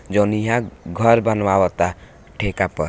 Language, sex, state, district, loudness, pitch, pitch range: Hindi, male, Bihar, Gopalganj, -19 LUFS, 105 Hz, 90-110 Hz